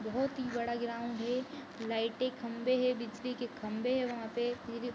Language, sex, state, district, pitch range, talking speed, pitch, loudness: Hindi, female, Maharashtra, Aurangabad, 235-255 Hz, 195 wpm, 240 Hz, -36 LUFS